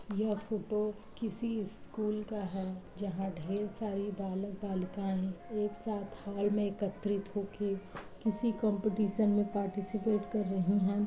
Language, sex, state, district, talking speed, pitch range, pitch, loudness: Hindi, female, Uttar Pradesh, Jalaun, 130 wpm, 195-215 Hz, 205 Hz, -35 LUFS